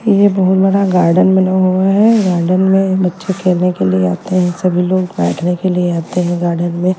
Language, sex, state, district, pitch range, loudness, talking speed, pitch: Hindi, female, Bihar, Kaimur, 175-190 Hz, -13 LUFS, 205 wpm, 185 Hz